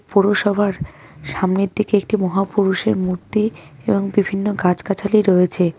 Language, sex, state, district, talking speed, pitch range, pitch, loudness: Bengali, female, West Bengal, Cooch Behar, 105 wpm, 180-205 Hz, 195 Hz, -18 LUFS